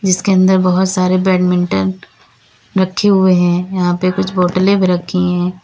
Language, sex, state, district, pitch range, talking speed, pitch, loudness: Hindi, female, Uttar Pradesh, Lalitpur, 180-190 Hz, 160 wpm, 185 Hz, -14 LUFS